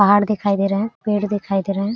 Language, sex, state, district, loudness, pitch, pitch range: Hindi, female, Jharkhand, Sahebganj, -19 LUFS, 205 Hz, 195-210 Hz